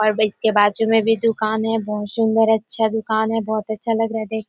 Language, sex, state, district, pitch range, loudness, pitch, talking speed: Hindi, female, Chhattisgarh, Korba, 215-225 Hz, -19 LUFS, 220 Hz, 255 wpm